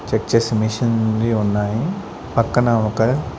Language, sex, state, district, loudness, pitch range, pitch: Telugu, male, Andhra Pradesh, Sri Satya Sai, -19 LUFS, 110-120 Hz, 115 Hz